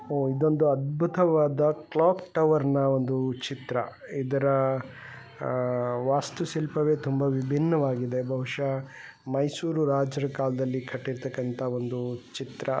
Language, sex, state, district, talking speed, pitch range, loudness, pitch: Kannada, male, Karnataka, Chamarajanagar, 95 wpm, 130-150 Hz, -27 LUFS, 135 Hz